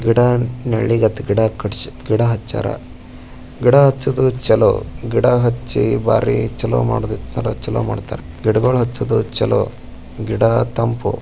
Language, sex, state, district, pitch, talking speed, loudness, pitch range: Kannada, male, Karnataka, Bijapur, 115 Hz, 95 wpm, -17 LUFS, 110-125 Hz